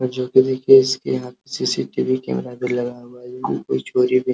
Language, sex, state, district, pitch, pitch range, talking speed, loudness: Hindi, male, Uttar Pradesh, Hamirpur, 125 Hz, 120-130 Hz, 205 wpm, -19 LUFS